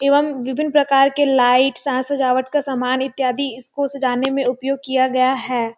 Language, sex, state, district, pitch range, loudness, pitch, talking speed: Hindi, female, Chhattisgarh, Sarguja, 255-280 Hz, -18 LUFS, 265 Hz, 175 wpm